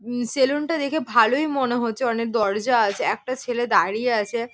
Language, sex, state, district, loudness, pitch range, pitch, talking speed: Bengali, female, West Bengal, North 24 Parganas, -22 LUFS, 230-260 Hz, 240 Hz, 170 wpm